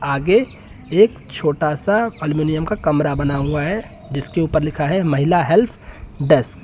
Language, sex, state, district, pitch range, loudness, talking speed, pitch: Hindi, male, Uttar Pradesh, Lucknow, 145-180 Hz, -18 LUFS, 160 wpm, 155 Hz